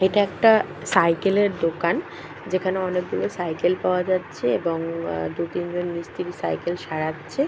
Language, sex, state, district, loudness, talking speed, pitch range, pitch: Bengali, female, West Bengal, Purulia, -23 LUFS, 130 wpm, 165-185 Hz, 175 Hz